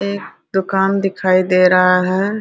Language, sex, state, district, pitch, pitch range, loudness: Hindi, female, Bihar, Araria, 190 Hz, 185-195 Hz, -15 LUFS